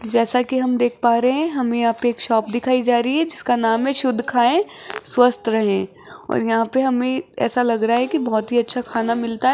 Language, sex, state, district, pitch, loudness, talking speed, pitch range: Hindi, female, Rajasthan, Jaipur, 245 Hz, -19 LUFS, 235 wpm, 230-255 Hz